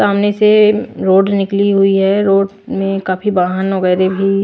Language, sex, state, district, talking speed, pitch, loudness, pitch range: Hindi, female, Maharashtra, Washim, 160 wpm, 195 Hz, -13 LUFS, 195-205 Hz